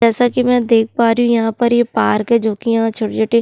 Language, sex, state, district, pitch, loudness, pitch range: Hindi, female, Uttarakhand, Tehri Garhwal, 230 Hz, -15 LUFS, 225-240 Hz